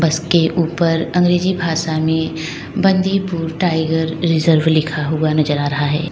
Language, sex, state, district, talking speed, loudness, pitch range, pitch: Hindi, female, Uttar Pradesh, Lalitpur, 135 wpm, -17 LUFS, 155-170 Hz, 160 Hz